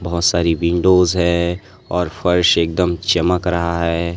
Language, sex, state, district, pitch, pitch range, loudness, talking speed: Hindi, male, Chhattisgarh, Raipur, 85 Hz, 85-90 Hz, -16 LUFS, 145 wpm